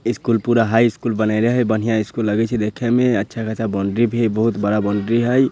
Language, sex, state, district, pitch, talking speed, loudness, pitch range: Bhojpuri, male, Bihar, Sitamarhi, 115 Hz, 230 wpm, -18 LUFS, 110-120 Hz